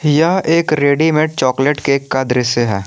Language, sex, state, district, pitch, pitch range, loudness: Hindi, male, Jharkhand, Palamu, 145 Hz, 130-155 Hz, -14 LUFS